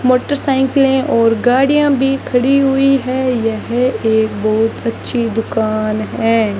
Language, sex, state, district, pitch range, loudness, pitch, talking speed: Hindi, female, Rajasthan, Bikaner, 225-270 Hz, -14 LUFS, 245 Hz, 120 wpm